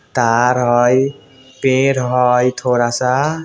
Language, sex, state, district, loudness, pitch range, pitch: Bajjika, male, Bihar, Vaishali, -15 LUFS, 125-130 Hz, 125 Hz